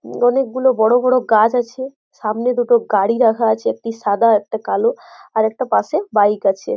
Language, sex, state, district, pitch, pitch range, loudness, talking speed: Bengali, female, West Bengal, Jhargram, 230 Hz, 220-250 Hz, -16 LUFS, 175 wpm